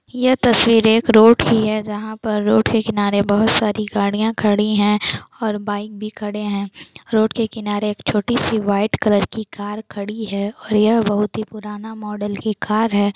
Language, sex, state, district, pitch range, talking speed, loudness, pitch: Hindi, female, Bihar, Jamui, 205-220 Hz, 190 wpm, -18 LUFS, 210 Hz